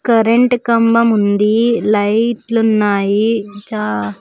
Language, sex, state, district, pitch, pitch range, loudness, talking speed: Telugu, female, Andhra Pradesh, Sri Satya Sai, 220 Hz, 205-230 Hz, -14 LUFS, 85 wpm